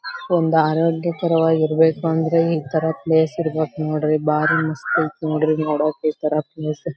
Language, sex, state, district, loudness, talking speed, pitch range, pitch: Kannada, female, Karnataka, Belgaum, -19 LUFS, 140 wpm, 155-165 Hz, 160 Hz